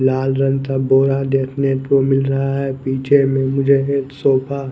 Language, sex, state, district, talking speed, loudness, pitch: Hindi, male, Odisha, Khordha, 180 wpm, -17 LUFS, 135 Hz